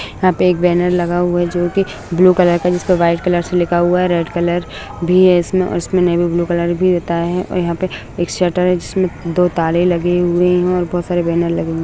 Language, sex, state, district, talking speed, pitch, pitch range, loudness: Hindi, female, Bihar, Jahanabad, 265 wpm, 175 Hz, 175-180 Hz, -15 LUFS